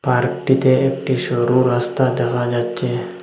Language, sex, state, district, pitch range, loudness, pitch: Bengali, male, Assam, Hailakandi, 120-130 Hz, -18 LUFS, 125 Hz